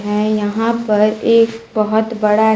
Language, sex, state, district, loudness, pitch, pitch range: Hindi, female, Bihar, Kaimur, -15 LUFS, 220 Hz, 210-225 Hz